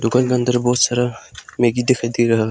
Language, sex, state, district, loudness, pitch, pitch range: Hindi, male, Arunachal Pradesh, Lower Dibang Valley, -18 LUFS, 120 Hz, 115-125 Hz